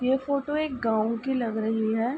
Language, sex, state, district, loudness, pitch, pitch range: Hindi, female, Uttar Pradesh, Ghazipur, -27 LUFS, 240 Hz, 225-270 Hz